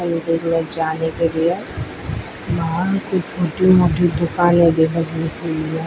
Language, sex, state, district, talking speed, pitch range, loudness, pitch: Hindi, female, Rajasthan, Bikaner, 145 wpm, 160-175 Hz, -18 LUFS, 165 Hz